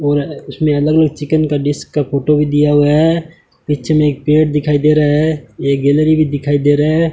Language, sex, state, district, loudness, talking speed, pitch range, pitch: Hindi, male, Rajasthan, Bikaner, -13 LUFS, 225 wpm, 145-155 Hz, 150 Hz